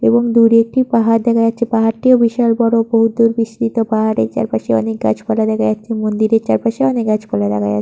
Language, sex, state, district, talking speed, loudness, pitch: Bengali, female, West Bengal, Purulia, 175 wpm, -15 LUFS, 225 Hz